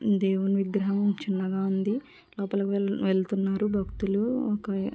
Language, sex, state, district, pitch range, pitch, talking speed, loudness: Telugu, female, Andhra Pradesh, Krishna, 195-205 Hz, 200 Hz, 120 wpm, -27 LUFS